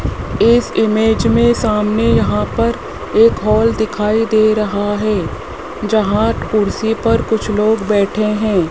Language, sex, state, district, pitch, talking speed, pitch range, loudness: Hindi, male, Rajasthan, Jaipur, 215 Hz, 130 wpm, 210-225 Hz, -15 LUFS